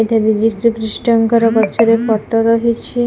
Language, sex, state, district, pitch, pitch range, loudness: Odia, female, Odisha, Khordha, 225 Hz, 220-230 Hz, -14 LUFS